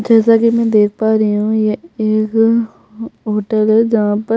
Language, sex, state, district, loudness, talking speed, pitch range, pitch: Hindi, female, Chhattisgarh, Jashpur, -14 LUFS, 190 wpm, 215-225 Hz, 220 Hz